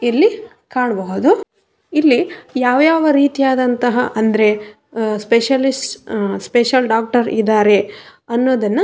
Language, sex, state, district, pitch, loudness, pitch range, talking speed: Kannada, female, Karnataka, Raichur, 245 Hz, -15 LUFS, 220-275 Hz, 90 wpm